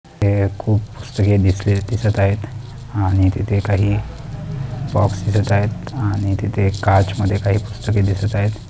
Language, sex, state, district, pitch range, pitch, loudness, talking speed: Marathi, male, Maharashtra, Dhule, 100-110 Hz, 105 Hz, -18 LUFS, 145 wpm